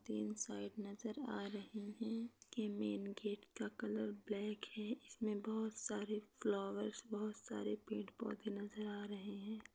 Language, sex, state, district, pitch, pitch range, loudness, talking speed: Hindi, female, Maharashtra, Pune, 210 Hz, 205-220 Hz, -45 LUFS, 155 wpm